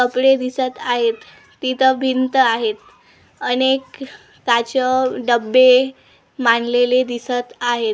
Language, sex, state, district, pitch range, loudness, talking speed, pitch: Marathi, female, Maharashtra, Gondia, 240-260 Hz, -17 LUFS, 90 wpm, 255 Hz